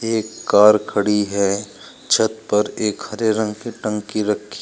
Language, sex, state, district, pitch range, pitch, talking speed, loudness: Hindi, male, Uttar Pradesh, Shamli, 105-110 Hz, 105 Hz, 170 wpm, -19 LUFS